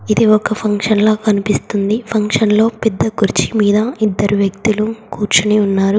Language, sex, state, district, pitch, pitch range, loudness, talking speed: Telugu, female, Telangana, Komaram Bheem, 215 Hz, 205-220 Hz, -14 LUFS, 140 wpm